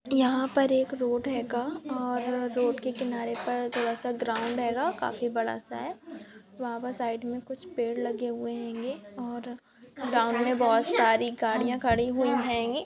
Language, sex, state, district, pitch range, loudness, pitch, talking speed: Hindi, female, West Bengal, Kolkata, 235-255 Hz, -29 LUFS, 245 Hz, 180 wpm